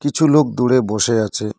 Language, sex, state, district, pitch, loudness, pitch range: Bengali, male, West Bengal, Cooch Behar, 120 Hz, -16 LUFS, 105-145 Hz